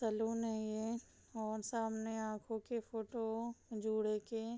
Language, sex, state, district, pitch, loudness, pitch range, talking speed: Hindi, female, Bihar, Sitamarhi, 225 Hz, -41 LUFS, 220-230 Hz, 155 wpm